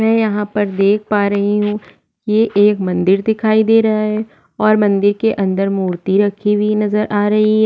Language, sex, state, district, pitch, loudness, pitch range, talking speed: Hindi, female, Maharashtra, Aurangabad, 210 Hz, -15 LUFS, 200-215 Hz, 205 wpm